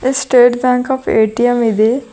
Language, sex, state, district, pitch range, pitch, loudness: Kannada, female, Karnataka, Bidar, 230-255 Hz, 245 Hz, -13 LUFS